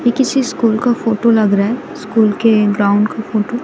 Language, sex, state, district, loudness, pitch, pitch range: Hindi, female, Chhattisgarh, Raipur, -14 LUFS, 225 Hz, 210-240 Hz